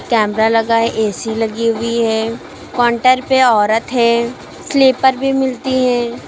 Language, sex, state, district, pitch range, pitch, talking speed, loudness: Hindi, female, Uttar Pradesh, Lucknow, 225-255 Hz, 235 Hz, 155 wpm, -14 LUFS